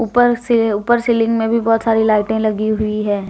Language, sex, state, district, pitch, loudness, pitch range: Hindi, female, Jharkhand, Deoghar, 225 Hz, -16 LUFS, 215-230 Hz